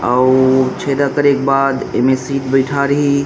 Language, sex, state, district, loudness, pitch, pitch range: Chhattisgarhi, male, Chhattisgarh, Rajnandgaon, -14 LUFS, 135 Hz, 130-140 Hz